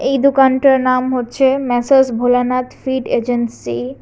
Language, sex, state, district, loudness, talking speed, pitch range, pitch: Bengali, female, Tripura, West Tripura, -15 LUFS, 135 wpm, 245-265 Hz, 255 Hz